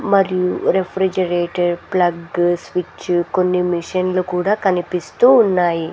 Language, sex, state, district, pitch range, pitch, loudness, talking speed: Telugu, female, Andhra Pradesh, Sri Satya Sai, 175-185 Hz, 180 Hz, -17 LUFS, 100 wpm